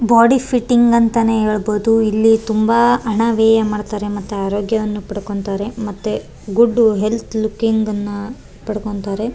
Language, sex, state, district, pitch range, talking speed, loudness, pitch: Kannada, female, Karnataka, Raichur, 210-230 Hz, 110 wpm, -16 LUFS, 220 Hz